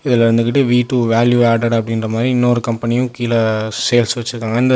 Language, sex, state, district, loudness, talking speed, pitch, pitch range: Tamil, male, Tamil Nadu, Namakkal, -15 LUFS, 165 wpm, 120 Hz, 115-125 Hz